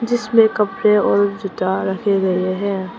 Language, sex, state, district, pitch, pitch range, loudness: Hindi, female, Arunachal Pradesh, Papum Pare, 200 Hz, 190-215 Hz, -17 LUFS